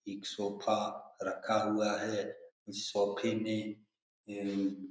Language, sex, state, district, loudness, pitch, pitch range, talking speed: Hindi, male, Bihar, Jamui, -35 LUFS, 105 Hz, 100-110 Hz, 110 wpm